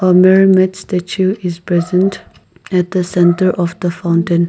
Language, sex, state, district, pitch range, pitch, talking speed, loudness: English, male, Nagaland, Kohima, 175-185 Hz, 180 Hz, 135 wpm, -14 LUFS